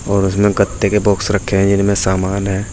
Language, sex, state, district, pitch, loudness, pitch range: Hindi, male, Uttar Pradesh, Saharanpur, 100 Hz, -15 LUFS, 95-105 Hz